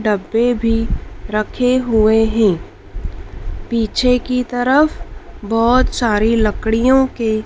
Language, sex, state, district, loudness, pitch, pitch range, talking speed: Hindi, female, Madhya Pradesh, Dhar, -16 LUFS, 225 Hz, 210-245 Hz, 95 wpm